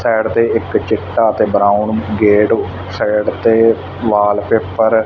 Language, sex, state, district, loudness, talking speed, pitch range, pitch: Punjabi, male, Punjab, Fazilka, -14 LUFS, 140 wpm, 105-110 Hz, 110 Hz